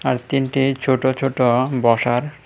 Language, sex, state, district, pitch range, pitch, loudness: Bengali, male, Tripura, West Tripura, 125-135 Hz, 130 Hz, -18 LUFS